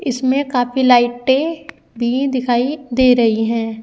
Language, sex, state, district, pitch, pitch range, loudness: Hindi, female, Uttar Pradesh, Saharanpur, 250 Hz, 240-265 Hz, -16 LUFS